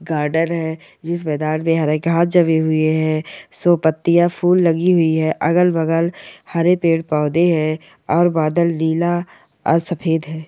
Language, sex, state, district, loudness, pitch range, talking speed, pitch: Hindi, male, Maharashtra, Solapur, -17 LUFS, 160-170 Hz, 155 wpm, 165 Hz